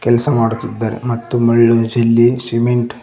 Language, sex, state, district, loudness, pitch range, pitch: Kannada, male, Karnataka, Koppal, -14 LUFS, 115-120 Hz, 115 Hz